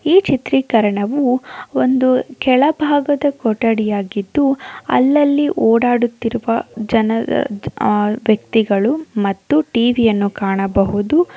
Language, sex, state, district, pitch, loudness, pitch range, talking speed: Kannada, female, Karnataka, Dakshina Kannada, 235 Hz, -16 LUFS, 210-280 Hz, 75 wpm